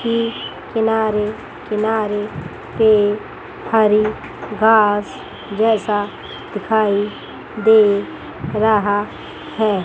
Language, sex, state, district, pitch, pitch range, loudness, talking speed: Hindi, female, Chandigarh, Chandigarh, 215 Hz, 205-220 Hz, -17 LUFS, 65 wpm